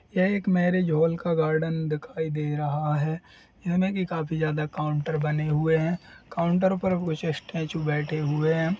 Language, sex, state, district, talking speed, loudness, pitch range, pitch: Hindi, male, Uttar Pradesh, Jalaun, 170 wpm, -26 LUFS, 150-175 Hz, 160 Hz